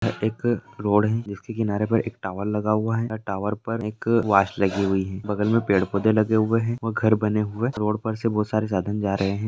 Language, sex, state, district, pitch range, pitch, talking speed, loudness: Hindi, male, Bihar, Gaya, 100-115 Hz, 105 Hz, 235 wpm, -23 LUFS